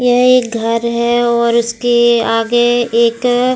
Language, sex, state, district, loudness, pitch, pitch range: Hindi, female, Goa, North and South Goa, -13 LUFS, 235 Hz, 235-245 Hz